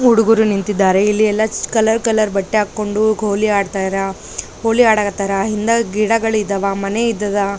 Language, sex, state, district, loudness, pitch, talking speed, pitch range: Kannada, female, Karnataka, Raichur, -16 LUFS, 210 Hz, 140 wpm, 200-220 Hz